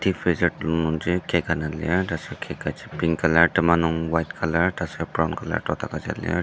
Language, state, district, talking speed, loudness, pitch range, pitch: Ao, Nagaland, Dimapur, 205 wpm, -24 LUFS, 80-85 Hz, 85 Hz